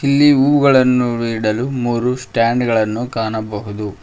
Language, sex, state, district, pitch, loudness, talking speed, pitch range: Kannada, male, Karnataka, Koppal, 120 Hz, -16 LUFS, 105 wpm, 110-130 Hz